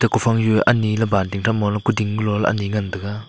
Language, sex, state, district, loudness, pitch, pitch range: Wancho, male, Arunachal Pradesh, Longding, -19 LUFS, 105 Hz, 105-110 Hz